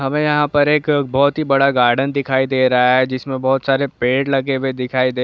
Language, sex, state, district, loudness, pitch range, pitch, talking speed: Hindi, male, Jharkhand, Jamtara, -16 LUFS, 130-140 Hz, 135 Hz, 215 wpm